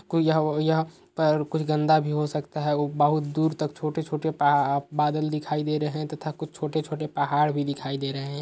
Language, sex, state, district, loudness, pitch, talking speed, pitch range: Hindi, male, Uttar Pradesh, Hamirpur, -26 LUFS, 150 Hz, 205 wpm, 145-155 Hz